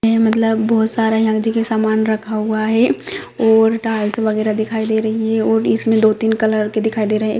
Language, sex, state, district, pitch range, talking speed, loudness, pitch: Hindi, female, Jharkhand, Sahebganj, 220-225 Hz, 220 wpm, -16 LUFS, 220 Hz